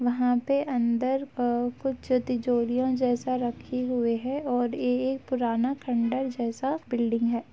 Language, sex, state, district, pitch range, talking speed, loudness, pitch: Hindi, female, Uttar Pradesh, Etah, 240-260 Hz, 135 wpm, -27 LUFS, 250 Hz